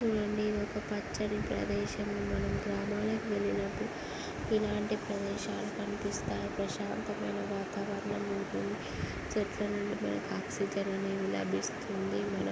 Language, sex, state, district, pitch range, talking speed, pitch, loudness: Telugu, female, Andhra Pradesh, Guntur, 200-210 Hz, 90 wpm, 205 Hz, -35 LUFS